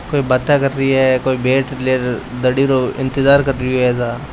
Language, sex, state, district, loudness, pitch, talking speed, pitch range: Hindi, male, Rajasthan, Nagaur, -15 LUFS, 130 Hz, 210 wpm, 125-135 Hz